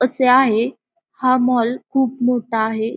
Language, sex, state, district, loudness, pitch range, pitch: Marathi, female, Maharashtra, Pune, -17 LUFS, 230-260 Hz, 250 Hz